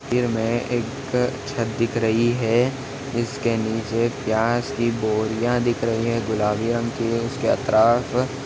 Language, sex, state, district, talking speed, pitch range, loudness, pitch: Hindi, male, Chhattisgarh, Balrampur, 165 wpm, 115-125 Hz, -22 LUFS, 115 Hz